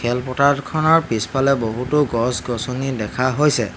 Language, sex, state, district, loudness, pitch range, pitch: Assamese, male, Assam, Hailakandi, -19 LUFS, 120-140 Hz, 130 Hz